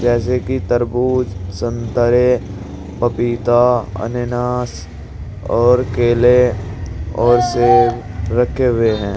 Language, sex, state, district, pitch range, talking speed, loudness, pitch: Hindi, male, Uttar Pradesh, Saharanpur, 100-125 Hz, 85 wpm, -16 LUFS, 120 Hz